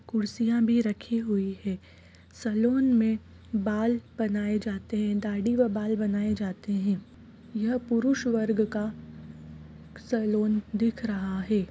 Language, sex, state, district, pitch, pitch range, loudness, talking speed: Hindi, female, Bihar, East Champaran, 215 Hz, 200-230 Hz, -28 LUFS, 130 wpm